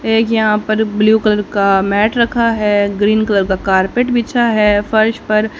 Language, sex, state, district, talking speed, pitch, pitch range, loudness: Hindi, female, Haryana, Jhajjar, 180 wpm, 215 Hz, 205-225 Hz, -14 LUFS